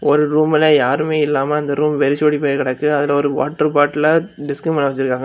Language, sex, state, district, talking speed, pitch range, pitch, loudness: Tamil, male, Tamil Nadu, Kanyakumari, 185 wpm, 140-150 Hz, 150 Hz, -16 LUFS